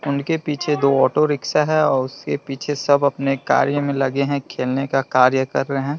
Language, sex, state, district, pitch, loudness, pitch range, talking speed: Hindi, male, Bihar, Vaishali, 140 Hz, -19 LUFS, 135-145 Hz, 210 wpm